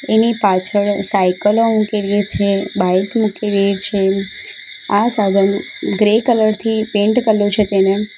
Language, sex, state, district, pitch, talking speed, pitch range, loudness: Gujarati, female, Gujarat, Valsad, 205 Hz, 140 wpm, 195-215 Hz, -15 LUFS